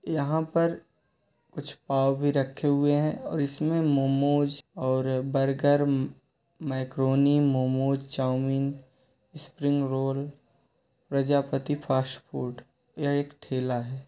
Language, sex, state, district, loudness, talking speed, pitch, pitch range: Hindi, male, Uttar Pradesh, Muzaffarnagar, -27 LUFS, 100 wpm, 140 Hz, 135-145 Hz